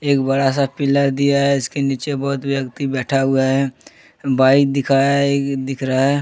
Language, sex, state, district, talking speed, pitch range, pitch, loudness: Hindi, male, Jharkhand, Deoghar, 175 wpm, 135-140 Hz, 135 Hz, -17 LUFS